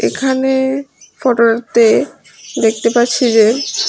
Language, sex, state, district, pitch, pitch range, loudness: Bengali, female, Tripura, West Tripura, 250 Hz, 230-270 Hz, -13 LUFS